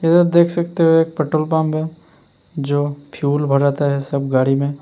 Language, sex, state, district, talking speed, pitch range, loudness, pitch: Hindi, male, Uttar Pradesh, Hamirpur, 185 wpm, 140-165 Hz, -17 LUFS, 155 Hz